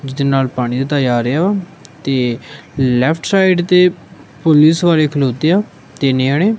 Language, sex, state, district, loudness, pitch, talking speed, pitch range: Punjabi, male, Punjab, Kapurthala, -14 LUFS, 145 Hz, 145 wpm, 130-170 Hz